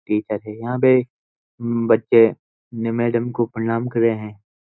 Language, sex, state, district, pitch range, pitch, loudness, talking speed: Hindi, male, Uttarakhand, Uttarkashi, 105-120 Hz, 115 Hz, -20 LUFS, 140 wpm